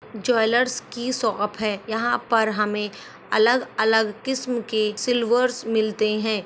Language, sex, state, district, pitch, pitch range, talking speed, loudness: Hindi, female, Maharashtra, Aurangabad, 225 Hz, 215-245 Hz, 130 wpm, -22 LUFS